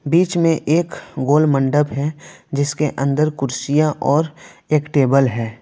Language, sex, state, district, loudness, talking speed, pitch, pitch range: Hindi, male, West Bengal, Alipurduar, -18 LUFS, 140 wpm, 145 Hz, 140-155 Hz